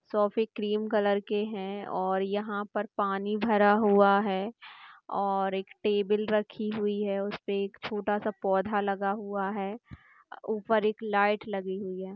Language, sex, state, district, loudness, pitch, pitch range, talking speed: Marathi, female, Maharashtra, Sindhudurg, -29 LUFS, 205 Hz, 195-210 Hz, 160 wpm